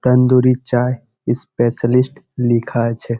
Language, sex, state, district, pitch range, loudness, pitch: Bengali, male, West Bengal, Malda, 120-125 Hz, -17 LUFS, 120 Hz